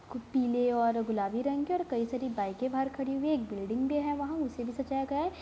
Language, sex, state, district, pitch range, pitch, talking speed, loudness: Hindi, female, Bihar, Gopalganj, 240-285 Hz, 260 Hz, 265 wpm, -32 LUFS